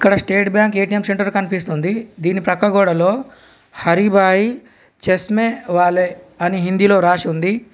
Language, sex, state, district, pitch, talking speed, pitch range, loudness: Telugu, male, Telangana, Komaram Bheem, 195 Hz, 140 wpm, 180-205 Hz, -16 LUFS